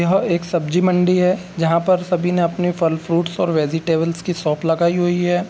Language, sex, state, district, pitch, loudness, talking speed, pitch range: Hindi, male, Bihar, Gopalganj, 175 Hz, -18 LUFS, 220 wpm, 165-180 Hz